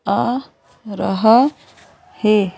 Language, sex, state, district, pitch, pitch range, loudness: Hindi, female, Madhya Pradesh, Bhopal, 220 Hz, 200-245 Hz, -17 LUFS